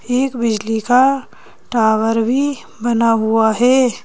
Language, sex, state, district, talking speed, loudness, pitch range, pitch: Hindi, female, Madhya Pradesh, Bhopal, 120 wpm, -16 LUFS, 225-255 Hz, 235 Hz